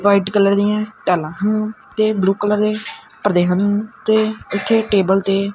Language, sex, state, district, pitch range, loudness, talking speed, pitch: Punjabi, male, Punjab, Kapurthala, 195-215 Hz, -17 LUFS, 160 wpm, 205 Hz